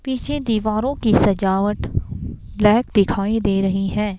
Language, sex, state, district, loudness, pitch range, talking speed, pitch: Hindi, female, Himachal Pradesh, Shimla, -19 LUFS, 200-230 Hz, 130 wpm, 210 Hz